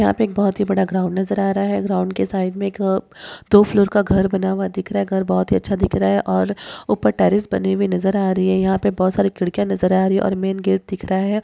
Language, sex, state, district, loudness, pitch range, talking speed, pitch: Hindi, female, Rajasthan, Nagaur, -19 LUFS, 185-200 Hz, 290 wpm, 195 Hz